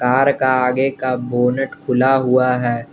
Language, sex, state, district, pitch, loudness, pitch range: Hindi, male, Jharkhand, Garhwa, 130 Hz, -17 LUFS, 125-135 Hz